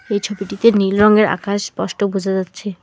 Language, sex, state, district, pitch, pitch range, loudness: Bengali, female, West Bengal, Alipurduar, 200 Hz, 195-210 Hz, -17 LUFS